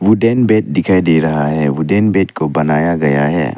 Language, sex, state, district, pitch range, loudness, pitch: Hindi, male, Arunachal Pradesh, Lower Dibang Valley, 75-100 Hz, -13 LUFS, 80 Hz